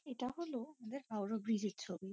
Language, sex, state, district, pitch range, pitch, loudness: Bengali, female, West Bengal, Kolkata, 205-260 Hz, 225 Hz, -42 LUFS